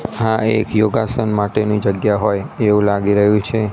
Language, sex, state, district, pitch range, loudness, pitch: Gujarati, male, Gujarat, Gandhinagar, 105-110 Hz, -16 LUFS, 105 Hz